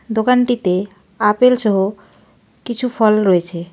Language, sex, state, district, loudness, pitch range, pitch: Bengali, female, West Bengal, Darjeeling, -16 LUFS, 190-240 Hz, 210 Hz